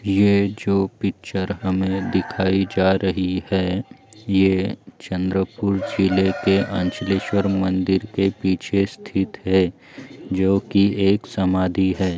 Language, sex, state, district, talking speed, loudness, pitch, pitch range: Hindi, male, Maharashtra, Chandrapur, 115 wpm, -21 LUFS, 95 Hz, 95-100 Hz